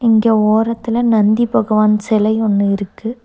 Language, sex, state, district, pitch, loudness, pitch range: Tamil, female, Tamil Nadu, Nilgiris, 220 Hz, -14 LUFS, 210-230 Hz